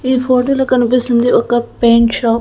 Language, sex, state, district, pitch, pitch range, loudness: Telugu, female, Andhra Pradesh, Sri Satya Sai, 245 Hz, 235-255 Hz, -12 LUFS